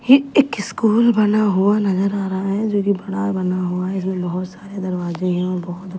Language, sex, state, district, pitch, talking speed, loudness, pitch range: Hindi, female, Delhi, New Delhi, 195 Hz, 220 wpm, -19 LUFS, 185-210 Hz